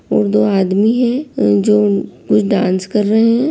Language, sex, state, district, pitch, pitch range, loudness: Hindi, female, Chhattisgarh, Kabirdham, 210 Hz, 190-225 Hz, -14 LUFS